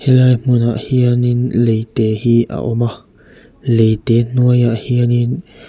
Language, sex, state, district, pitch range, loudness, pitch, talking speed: Mizo, male, Mizoram, Aizawl, 115-125 Hz, -14 LUFS, 120 Hz, 115 wpm